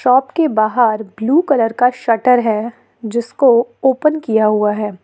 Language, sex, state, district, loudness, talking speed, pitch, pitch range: Hindi, female, Jharkhand, Ranchi, -15 LUFS, 155 wpm, 235 Hz, 220-260 Hz